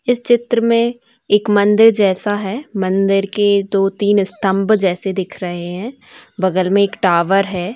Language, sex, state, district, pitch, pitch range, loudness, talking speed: Hindi, female, Bihar, Saran, 200 Hz, 190-225 Hz, -15 LUFS, 160 wpm